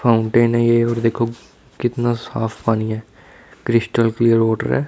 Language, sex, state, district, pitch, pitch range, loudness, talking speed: Hindi, male, Chandigarh, Chandigarh, 115 Hz, 115-120 Hz, -18 LUFS, 160 wpm